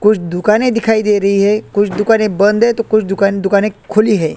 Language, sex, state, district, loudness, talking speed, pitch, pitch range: Hindi, male, Chhattisgarh, Korba, -13 LUFS, 220 wpm, 210 Hz, 200-215 Hz